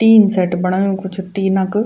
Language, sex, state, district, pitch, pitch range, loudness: Garhwali, female, Uttarakhand, Tehri Garhwal, 190 Hz, 185-200 Hz, -16 LUFS